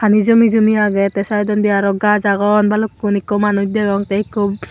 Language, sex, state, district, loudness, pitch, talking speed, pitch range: Chakma, female, Tripura, Unakoti, -15 LUFS, 210 Hz, 190 wpm, 200-210 Hz